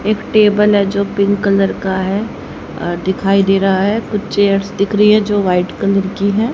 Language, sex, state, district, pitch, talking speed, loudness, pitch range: Hindi, female, Haryana, Charkhi Dadri, 200 Hz, 210 wpm, -14 LUFS, 195-210 Hz